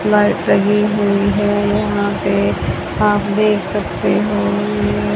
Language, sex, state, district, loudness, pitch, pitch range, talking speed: Hindi, male, Haryana, Rohtak, -16 LUFS, 205 Hz, 195-210 Hz, 130 wpm